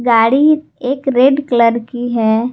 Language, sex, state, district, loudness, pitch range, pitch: Hindi, female, Jharkhand, Garhwa, -13 LUFS, 230-270 Hz, 245 Hz